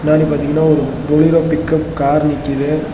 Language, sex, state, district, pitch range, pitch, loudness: Tamil, male, Tamil Nadu, Namakkal, 145-155 Hz, 150 Hz, -14 LUFS